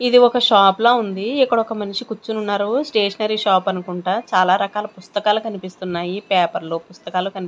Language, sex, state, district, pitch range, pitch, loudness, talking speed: Telugu, female, Andhra Pradesh, Sri Satya Sai, 185-220 Hz, 205 Hz, -18 LUFS, 145 wpm